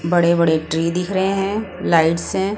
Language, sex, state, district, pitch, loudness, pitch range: Hindi, female, Punjab, Pathankot, 175 Hz, -18 LUFS, 165-190 Hz